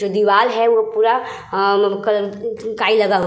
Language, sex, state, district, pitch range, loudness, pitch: Hindi, female, Uttar Pradesh, Budaun, 200-225 Hz, -17 LUFS, 215 Hz